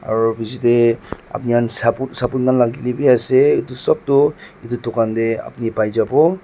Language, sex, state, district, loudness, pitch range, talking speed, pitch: Nagamese, male, Nagaland, Dimapur, -17 LUFS, 115-135 Hz, 170 wpm, 120 Hz